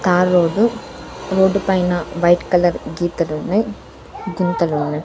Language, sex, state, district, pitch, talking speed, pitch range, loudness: Telugu, female, Andhra Pradesh, Sri Satya Sai, 180 Hz, 85 wpm, 175-190 Hz, -18 LUFS